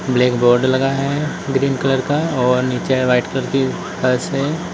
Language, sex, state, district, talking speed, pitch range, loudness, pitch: Hindi, male, Uttar Pradesh, Lalitpur, 165 wpm, 125-135 Hz, -17 LUFS, 130 Hz